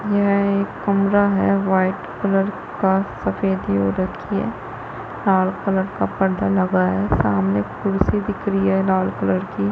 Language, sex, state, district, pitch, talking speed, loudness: Hindi, female, Chhattisgarh, Bastar, 190 Hz, 160 wpm, -20 LUFS